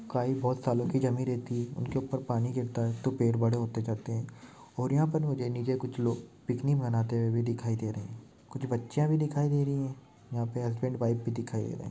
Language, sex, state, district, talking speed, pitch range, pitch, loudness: Hindi, male, Maharashtra, Sindhudurg, 235 wpm, 115-130 Hz, 120 Hz, -31 LUFS